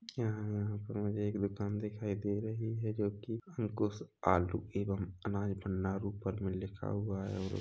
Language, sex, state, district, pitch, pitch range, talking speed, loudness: Hindi, male, Chhattisgarh, Rajnandgaon, 100 Hz, 95-105 Hz, 175 wpm, -37 LUFS